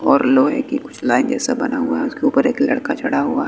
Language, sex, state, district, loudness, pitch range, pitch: Hindi, male, Bihar, West Champaran, -18 LUFS, 270-285 Hz, 280 Hz